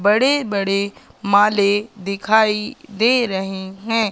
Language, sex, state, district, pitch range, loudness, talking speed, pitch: Hindi, female, Madhya Pradesh, Katni, 200-225 Hz, -18 LUFS, 100 wpm, 205 Hz